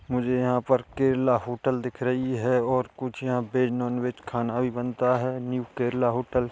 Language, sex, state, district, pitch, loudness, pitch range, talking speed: Hindi, male, Chhattisgarh, Korba, 125 Hz, -26 LUFS, 125-130 Hz, 205 wpm